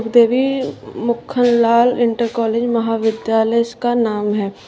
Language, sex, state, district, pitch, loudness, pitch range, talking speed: Hindi, female, Uttar Pradesh, Shamli, 235 Hz, -17 LUFS, 225-240 Hz, 130 wpm